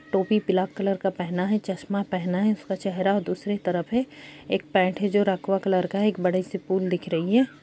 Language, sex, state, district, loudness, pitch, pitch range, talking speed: Hindi, female, Bihar, Jahanabad, -25 LUFS, 190 Hz, 180-200 Hz, 230 wpm